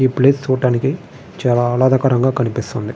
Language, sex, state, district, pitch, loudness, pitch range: Telugu, male, Andhra Pradesh, Srikakulam, 130 Hz, -16 LUFS, 120-130 Hz